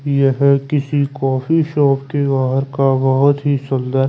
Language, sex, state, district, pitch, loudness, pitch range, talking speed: Hindi, male, Chandigarh, Chandigarh, 140 Hz, -16 LUFS, 135-145 Hz, 145 wpm